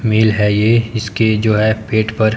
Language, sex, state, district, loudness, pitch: Hindi, male, Himachal Pradesh, Shimla, -14 LUFS, 110 Hz